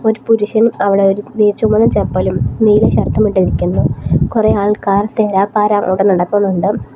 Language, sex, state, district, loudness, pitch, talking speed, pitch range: Malayalam, female, Kerala, Kollam, -13 LUFS, 210 Hz, 130 wpm, 200-220 Hz